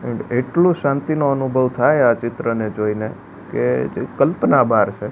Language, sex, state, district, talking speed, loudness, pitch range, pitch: Gujarati, male, Gujarat, Gandhinagar, 150 wpm, -18 LUFS, 105-140 Hz, 120 Hz